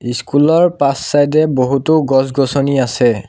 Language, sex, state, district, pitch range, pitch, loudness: Assamese, male, Assam, Sonitpur, 130-145 Hz, 135 Hz, -13 LUFS